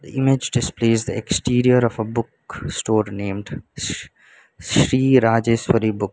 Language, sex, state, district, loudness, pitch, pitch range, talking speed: English, male, Sikkim, Gangtok, -19 LUFS, 115 Hz, 110-125 Hz, 135 wpm